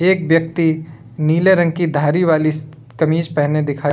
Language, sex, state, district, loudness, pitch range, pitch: Hindi, male, Uttar Pradesh, Lalitpur, -16 LUFS, 150-165 Hz, 160 Hz